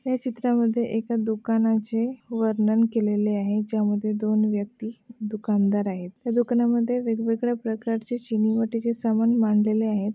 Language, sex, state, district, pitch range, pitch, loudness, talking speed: Marathi, female, Maharashtra, Nagpur, 215-235 Hz, 225 Hz, -24 LUFS, 120 wpm